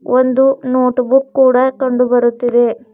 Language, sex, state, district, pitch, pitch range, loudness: Kannada, female, Karnataka, Bidar, 255 Hz, 245-265 Hz, -13 LUFS